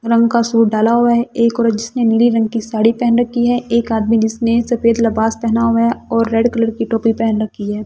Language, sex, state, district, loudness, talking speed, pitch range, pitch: Hindi, female, Delhi, New Delhi, -15 LUFS, 245 wpm, 225-235 Hz, 230 Hz